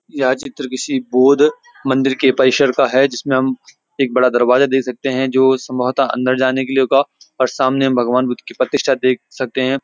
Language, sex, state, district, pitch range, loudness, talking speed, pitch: Hindi, male, Uttarakhand, Uttarkashi, 130-135 Hz, -16 LUFS, 205 wpm, 130 Hz